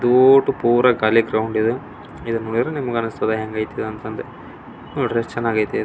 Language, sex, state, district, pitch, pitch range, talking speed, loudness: Kannada, male, Karnataka, Belgaum, 115 Hz, 110-125 Hz, 175 wpm, -19 LUFS